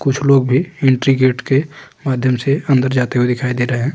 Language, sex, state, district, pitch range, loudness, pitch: Hindi, male, Uttarakhand, Tehri Garhwal, 125-140 Hz, -15 LUFS, 130 Hz